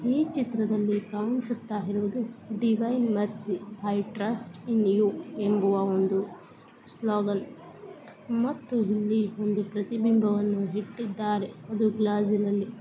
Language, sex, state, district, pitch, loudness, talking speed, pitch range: Kannada, female, Karnataka, Belgaum, 210 Hz, -28 LUFS, 80 wpm, 205-225 Hz